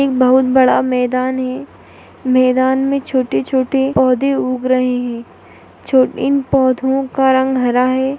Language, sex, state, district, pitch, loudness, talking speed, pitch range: Hindi, female, Maharashtra, Dhule, 260 Hz, -15 LUFS, 140 wpm, 255-265 Hz